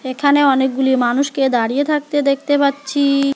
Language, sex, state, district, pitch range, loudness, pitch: Bengali, female, West Bengal, Alipurduar, 265-285 Hz, -16 LUFS, 275 Hz